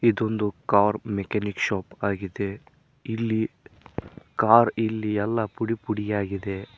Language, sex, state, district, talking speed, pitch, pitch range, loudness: Kannada, male, Karnataka, Koppal, 90 wpm, 105 Hz, 100-115 Hz, -25 LUFS